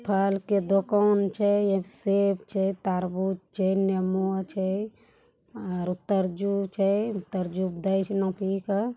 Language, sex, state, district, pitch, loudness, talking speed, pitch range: Angika, female, Bihar, Bhagalpur, 195 Hz, -27 LUFS, 100 wpm, 190-200 Hz